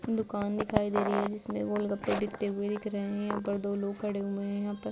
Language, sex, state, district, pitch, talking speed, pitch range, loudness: Hindi, female, Uttar Pradesh, Gorakhpur, 205 Hz, 245 wpm, 200-210 Hz, -32 LUFS